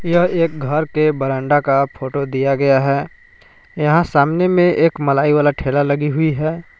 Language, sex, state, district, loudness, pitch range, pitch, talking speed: Hindi, male, Jharkhand, Palamu, -16 LUFS, 140-165 Hz, 150 Hz, 175 wpm